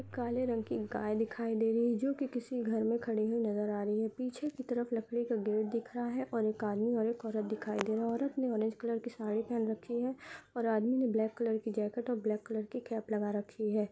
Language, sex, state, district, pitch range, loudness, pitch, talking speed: Hindi, female, Uttar Pradesh, Budaun, 215-240 Hz, -35 LUFS, 225 Hz, 270 wpm